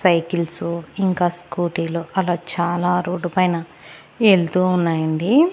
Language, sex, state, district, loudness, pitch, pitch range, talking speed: Telugu, female, Andhra Pradesh, Annamaya, -20 LUFS, 175 Hz, 170-185 Hz, 110 wpm